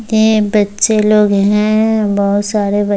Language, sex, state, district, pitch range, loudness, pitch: Hindi, female, Bihar, Muzaffarpur, 205-215 Hz, -12 LUFS, 210 Hz